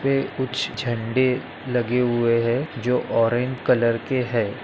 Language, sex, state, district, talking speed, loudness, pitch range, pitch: Hindi, male, Maharashtra, Nagpur, 140 wpm, -22 LUFS, 115-130 Hz, 125 Hz